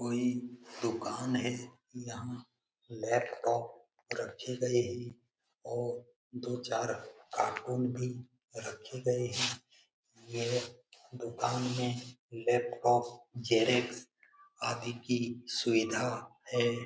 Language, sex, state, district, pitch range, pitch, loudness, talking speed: Hindi, male, Bihar, Jamui, 120-125 Hz, 120 Hz, -35 LUFS, 90 wpm